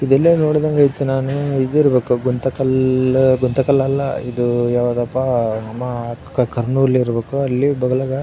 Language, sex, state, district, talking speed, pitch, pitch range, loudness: Kannada, male, Karnataka, Raichur, 115 wpm, 130 Hz, 125-135 Hz, -17 LUFS